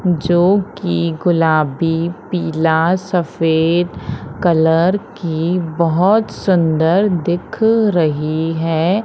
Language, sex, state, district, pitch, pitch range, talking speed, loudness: Hindi, female, Madhya Pradesh, Umaria, 170 Hz, 160-185 Hz, 80 wpm, -16 LUFS